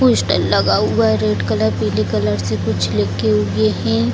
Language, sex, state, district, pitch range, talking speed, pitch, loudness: Hindi, female, Bihar, Jamui, 100-110 Hz, 175 wpm, 105 Hz, -17 LUFS